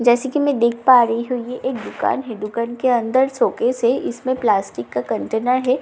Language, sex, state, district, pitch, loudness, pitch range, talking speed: Hindi, female, Bihar, Katihar, 245 Hz, -19 LUFS, 235-255 Hz, 225 wpm